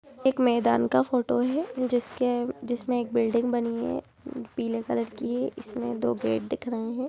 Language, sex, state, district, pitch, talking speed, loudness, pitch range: Hindi, female, Jharkhand, Jamtara, 240 Hz, 170 wpm, -27 LUFS, 230-250 Hz